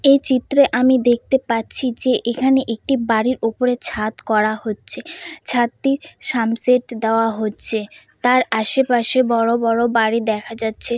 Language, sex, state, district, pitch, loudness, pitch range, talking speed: Bengali, female, West Bengal, Dakshin Dinajpur, 235 Hz, -18 LUFS, 225-255 Hz, 130 wpm